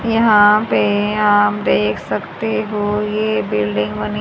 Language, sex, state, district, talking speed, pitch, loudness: Hindi, female, Haryana, Charkhi Dadri, 130 wpm, 205 Hz, -16 LUFS